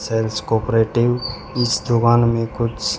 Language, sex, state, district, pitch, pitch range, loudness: Hindi, male, Haryana, Charkhi Dadri, 115 Hz, 115-120 Hz, -19 LUFS